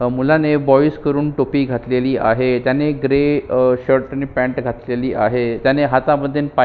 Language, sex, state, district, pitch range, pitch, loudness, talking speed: Marathi, male, Maharashtra, Sindhudurg, 125-145 Hz, 135 Hz, -17 LUFS, 160 wpm